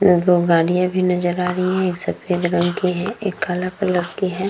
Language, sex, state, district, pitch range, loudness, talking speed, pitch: Hindi, female, Bihar, Vaishali, 175-185 Hz, -19 LUFS, 225 wpm, 180 Hz